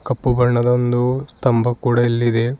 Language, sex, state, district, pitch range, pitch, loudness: Kannada, male, Karnataka, Bidar, 120-125 Hz, 120 Hz, -17 LUFS